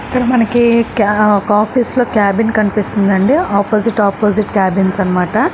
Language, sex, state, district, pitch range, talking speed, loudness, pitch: Telugu, female, Andhra Pradesh, Srikakulam, 200-225 Hz, 130 wpm, -13 LUFS, 210 Hz